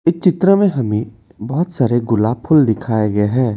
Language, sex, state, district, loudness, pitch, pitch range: Hindi, male, Assam, Kamrup Metropolitan, -16 LUFS, 120 Hz, 110-165 Hz